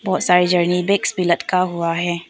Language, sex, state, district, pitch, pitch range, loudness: Hindi, female, Arunachal Pradesh, Papum Pare, 180 Hz, 175-185 Hz, -18 LUFS